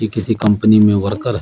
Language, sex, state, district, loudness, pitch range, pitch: Hindi, male, Bihar, Darbhanga, -14 LUFS, 105-110 Hz, 110 Hz